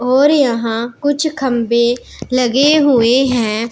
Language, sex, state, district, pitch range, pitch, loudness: Hindi, male, Punjab, Pathankot, 235-280 Hz, 250 Hz, -14 LUFS